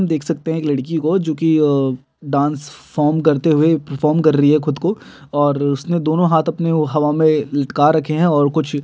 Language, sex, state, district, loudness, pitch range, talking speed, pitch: Hindi, male, Bihar, Muzaffarpur, -16 LUFS, 145-160 Hz, 210 wpm, 155 Hz